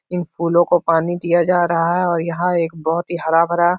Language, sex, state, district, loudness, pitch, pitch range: Hindi, male, Uttar Pradesh, Etah, -17 LUFS, 170 Hz, 165-175 Hz